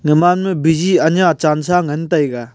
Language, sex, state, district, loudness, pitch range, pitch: Wancho, male, Arunachal Pradesh, Longding, -14 LUFS, 150-180 Hz, 160 Hz